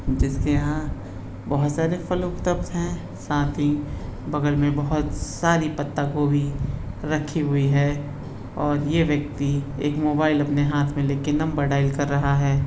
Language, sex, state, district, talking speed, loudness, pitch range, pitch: Hindi, male, Bihar, Purnia, 150 wpm, -23 LUFS, 140-150 Hz, 145 Hz